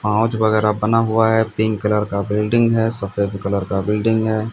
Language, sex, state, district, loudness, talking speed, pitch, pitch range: Hindi, male, Odisha, Sambalpur, -18 LUFS, 185 wpm, 110 Hz, 105-110 Hz